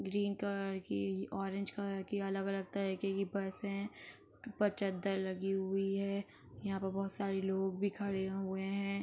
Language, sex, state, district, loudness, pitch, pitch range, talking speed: Hindi, female, Uttar Pradesh, Etah, -38 LUFS, 195 Hz, 195-200 Hz, 165 wpm